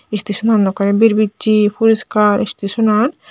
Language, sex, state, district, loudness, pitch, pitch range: Chakma, male, Tripura, Unakoti, -14 LUFS, 215 Hz, 205-225 Hz